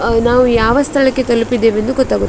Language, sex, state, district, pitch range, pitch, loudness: Kannada, female, Karnataka, Dakshina Kannada, 230-260 Hz, 240 Hz, -13 LUFS